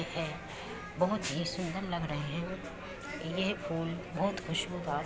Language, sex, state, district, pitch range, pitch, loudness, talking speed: Hindi, female, Uttar Pradesh, Muzaffarnagar, 160-180 Hz, 170 Hz, -35 LUFS, 140 wpm